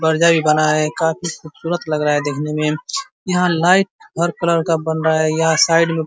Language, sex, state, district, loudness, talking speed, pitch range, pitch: Hindi, male, Uttar Pradesh, Ghazipur, -17 LUFS, 225 wpm, 155-170 Hz, 160 Hz